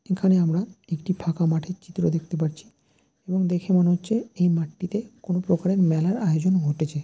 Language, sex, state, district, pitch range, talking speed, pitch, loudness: Bengali, male, West Bengal, Dakshin Dinajpur, 165-185 Hz, 160 wpm, 180 Hz, -24 LUFS